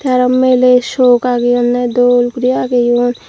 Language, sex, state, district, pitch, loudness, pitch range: Chakma, female, Tripura, Dhalai, 245 Hz, -12 LUFS, 245-255 Hz